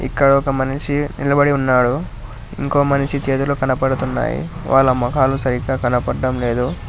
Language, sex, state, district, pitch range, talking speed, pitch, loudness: Telugu, male, Telangana, Hyderabad, 125-140 Hz, 120 wpm, 135 Hz, -17 LUFS